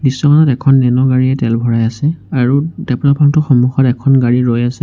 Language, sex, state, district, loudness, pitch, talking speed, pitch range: Assamese, male, Assam, Sonitpur, -12 LUFS, 130 Hz, 185 wpm, 125-145 Hz